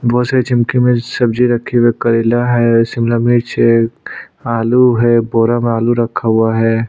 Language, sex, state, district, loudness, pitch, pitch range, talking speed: Hindi, male, Uttarakhand, Tehri Garhwal, -13 LUFS, 120 Hz, 115-120 Hz, 185 wpm